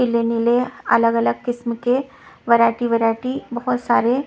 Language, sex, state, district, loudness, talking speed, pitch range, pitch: Hindi, female, Punjab, Kapurthala, -19 LUFS, 155 wpm, 230-250 Hz, 240 Hz